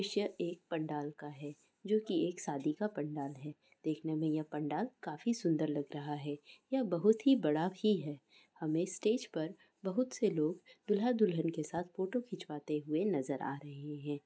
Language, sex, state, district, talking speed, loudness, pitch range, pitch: Maithili, female, Bihar, Araria, 180 wpm, -36 LUFS, 150-205 Hz, 160 Hz